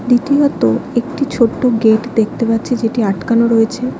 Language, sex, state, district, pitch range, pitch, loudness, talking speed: Bengali, female, West Bengal, Alipurduar, 225-250 Hz, 235 Hz, -14 LUFS, 135 wpm